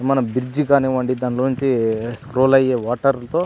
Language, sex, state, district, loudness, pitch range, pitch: Telugu, male, Andhra Pradesh, Anantapur, -19 LUFS, 125-135 Hz, 130 Hz